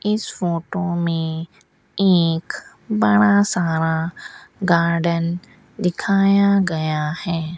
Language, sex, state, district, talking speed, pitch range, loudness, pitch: Hindi, female, Rajasthan, Bikaner, 80 wpm, 165-195 Hz, -19 LUFS, 175 Hz